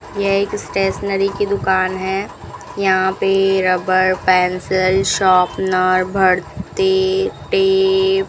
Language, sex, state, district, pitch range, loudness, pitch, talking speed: Hindi, female, Rajasthan, Bikaner, 185-200 Hz, -16 LUFS, 195 Hz, 100 wpm